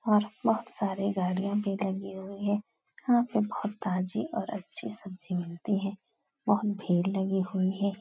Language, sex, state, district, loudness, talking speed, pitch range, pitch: Hindi, female, Uttar Pradesh, Etah, -31 LUFS, 170 wpm, 190-210 Hz, 200 Hz